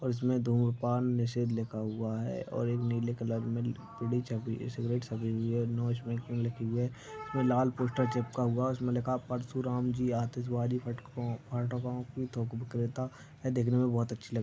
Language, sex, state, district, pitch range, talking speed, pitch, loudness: Hindi, male, Uttar Pradesh, Deoria, 115-125 Hz, 180 wpm, 120 Hz, -33 LUFS